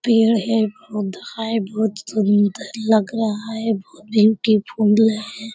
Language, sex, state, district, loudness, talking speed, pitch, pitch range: Hindi, female, Bihar, Jamui, -19 LUFS, 130 wpm, 220 Hz, 210-225 Hz